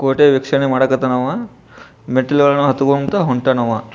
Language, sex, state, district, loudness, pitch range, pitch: Kannada, male, Karnataka, Bijapur, -15 LUFS, 130-140 Hz, 135 Hz